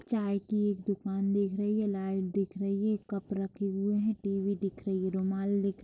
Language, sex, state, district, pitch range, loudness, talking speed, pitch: Hindi, female, Bihar, East Champaran, 195-205 Hz, -32 LUFS, 215 wpm, 200 Hz